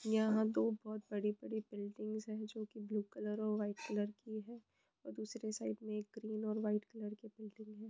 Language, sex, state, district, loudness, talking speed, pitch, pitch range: Hindi, female, West Bengal, Purulia, -42 LUFS, 205 wpm, 215 Hz, 210-220 Hz